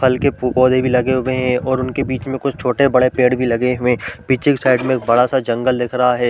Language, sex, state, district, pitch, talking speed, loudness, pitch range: Hindi, male, Chhattisgarh, Balrampur, 130 Hz, 275 wpm, -16 LUFS, 125-130 Hz